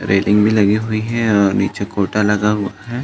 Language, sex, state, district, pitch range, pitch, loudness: Hindi, male, Uttar Pradesh, Jalaun, 100-110 Hz, 105 Hz, -16 LUFS